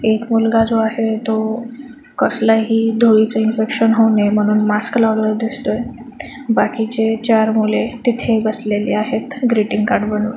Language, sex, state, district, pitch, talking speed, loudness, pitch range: Marathi, female, Maharashtra, Chandrapur, 225 Hz, 135 wpm, -16 LUFS, 220-235 Hz